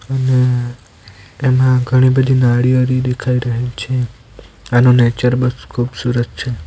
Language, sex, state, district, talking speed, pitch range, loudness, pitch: Gujarati, male, Gujarat, Valsad, 115 wpm, 120-130 Hz, -15 LUFS, 125 Hz